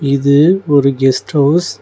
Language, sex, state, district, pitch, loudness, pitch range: Tamil, male, Tamil Nadu, Nilgiris, 140 Hz, -12 LUFS, 140-155 Hz